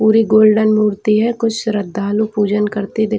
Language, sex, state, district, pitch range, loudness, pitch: Hindi, female, Chhattisgarh, Bilaspur, 210-220 Hz, -15 LUFS, 215 Hz